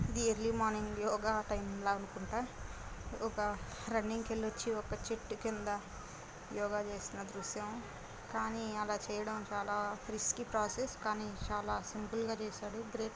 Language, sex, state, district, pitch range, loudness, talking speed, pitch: Telugu, female, Andhra Pradesh, Guntur, 210-225 Hz, -39 LUFS, 120 wpm, 215 Hz